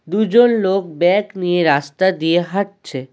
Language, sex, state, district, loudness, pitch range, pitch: Bengali, male, West Bengal, Alipurduar, -16 LUFS, 165-200 Hz, 185 Hz